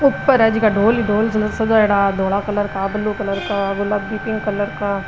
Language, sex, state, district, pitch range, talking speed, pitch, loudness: Marwari, female, Rajasthan, Nagaur, 200-220 Hz, 200 wpm, 210 Hz, -18 LUFS